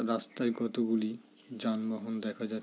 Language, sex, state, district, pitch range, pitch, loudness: Bengali, male, West Bengal, Jalpaiguri, 110-115 Hz, 115 Hz, -34 LUFS